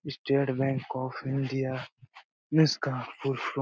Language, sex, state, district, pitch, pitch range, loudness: Hindi, male, Bihar, Lakhisarai, 135 Hz, 130-140 Hz, -29 LUFS